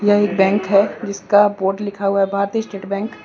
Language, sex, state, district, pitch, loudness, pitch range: Hindi, male, Jharkhand, Deoghar, 200 Hz, -17 LUFS, 195-205 Hz